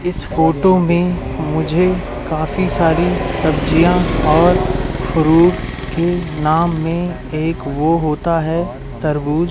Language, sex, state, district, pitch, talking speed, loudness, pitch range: Hindi, male, Madhya Pradesh, Katni, 165 Hz, 105 wpm, -16 LUFS, 155-175 Hz